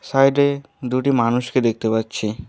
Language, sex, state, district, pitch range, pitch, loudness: Bengali, male, West Bengal, Alipurduar, 115-135 Hz, 125 Hz, -19 LUFS